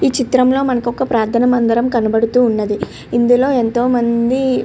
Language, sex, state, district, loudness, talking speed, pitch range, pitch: Telugu, female, Andhra Pradesh, Srikakulam, -15 LUFS, 140 wpm, 235-255 Hz, 240 Hz